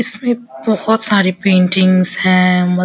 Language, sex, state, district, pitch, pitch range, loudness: Hindi, female, Bihar, Vaishali, 185 Hz, 180-220 Hz, -13 LUFS